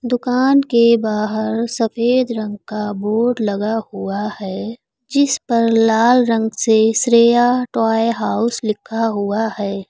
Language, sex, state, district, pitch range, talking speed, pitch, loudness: Hindi, female, Uttar Pradesh, Lucknow, 215-240 Hz, 125 wpm, 225 Hz, -17 LUFS